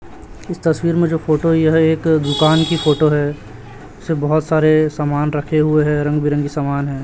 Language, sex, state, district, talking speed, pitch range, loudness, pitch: Hindi, male, Chhattisgarh, Raipur, 190 wpm, 145-160 Hz, -16 LUFS, 155 Hz